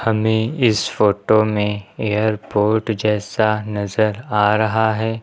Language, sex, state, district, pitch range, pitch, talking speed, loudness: Hindi, male, Uttar Pradesh, Lucknow, 105-110 Hz, 110 Hz, 115 wpm, -18 LUFS